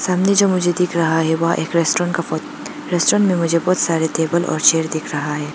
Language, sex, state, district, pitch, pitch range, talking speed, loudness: Hindi, female, Arunachal Pradesh, Lower Dibang Valley, 170 Hz, 160-180 Hz, 235 wpm, -17 LUFS